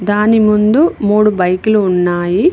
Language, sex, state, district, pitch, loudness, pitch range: Telugu, female, Telangana, Mahabubabad, 210 Hz, -12 LUFS, 185-215 Hz